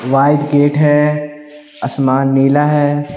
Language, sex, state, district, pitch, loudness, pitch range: Hindi, male, Bihar, Patna, 145 Hz, -13 LUFS, 140-150 Hz